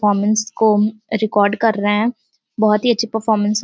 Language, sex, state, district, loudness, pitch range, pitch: Hindi, female, Uttar Pradesh, Deoria, -17 LUFS, 210-220 Hz, 215 Hz